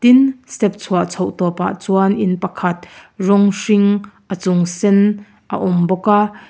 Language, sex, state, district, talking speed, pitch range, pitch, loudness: Mizo, female, Mizoram, Aizawl, 150 wpm, 185-205 Hz, 195 Hz, -16 LUFS